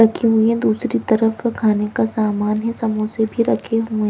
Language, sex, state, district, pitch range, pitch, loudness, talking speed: Hindi, female, Himachal Pradesh, Shimla, 215-230 Hz, 225 Hz, -18 LUFS, 190 wpm